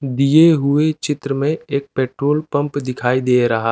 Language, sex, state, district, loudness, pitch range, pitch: Hindi, male, Chandigarh, Chandigarh, -17 LUFS, 130-150 Hz, 140 Hz